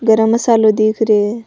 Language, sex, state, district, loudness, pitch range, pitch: Rajasthani, female, Rajasthan, Nagaur, -13 LUFS, 215-230 Hz, 220 Hz